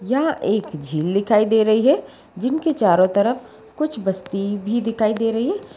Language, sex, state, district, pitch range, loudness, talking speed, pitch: Hindi, female, Bihar, Sitamarhi, 200-245 Hz, -20 LUFS, 175 wpm, 220 Hz